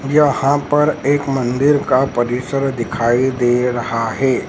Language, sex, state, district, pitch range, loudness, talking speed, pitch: Hindi, male, Madhya Pradesh, Dhar, 120-145 Hz, -16 LUFS, 135 wpm, 130 Hz